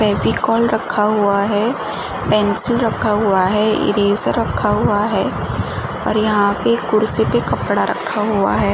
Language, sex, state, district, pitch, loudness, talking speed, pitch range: Hindi, female, Uttar Pradesh, Gorakhpur, 215 Hz, -16 LUFS, 145 wpm, 205-225 Hz